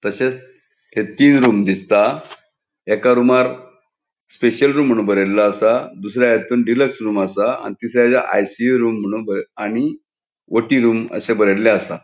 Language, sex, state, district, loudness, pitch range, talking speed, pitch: Konkani, male, Goa, North and South Goa, -16 LUFS, 105-130 Hz, 135 wpm, 120 Hz